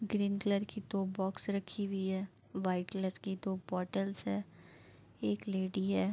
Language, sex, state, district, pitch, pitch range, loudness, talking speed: Hindi, female, Uttar Pradesh, Jalaun, 195 Hz, 185-200 Hz, -37 LUFS, 165 wpm